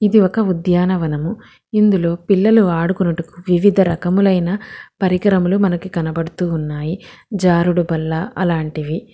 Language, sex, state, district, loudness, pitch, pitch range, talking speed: Telugu, female, Telangana, Hyderabad, -17 LUFS, 180 Hz, 170-195 Hz, 85 wpm